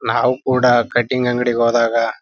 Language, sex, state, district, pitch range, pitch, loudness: Kannada, male, Karnataka, Raichur, 115-125 Hz, 120 Hz, -16 LUFS